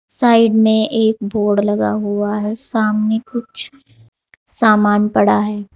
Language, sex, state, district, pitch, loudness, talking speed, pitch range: Hindi, female, Uttar Pradesh, Saharanpur, 215 Hz, -15 LUFS, 125 wpm, 205-220 Hz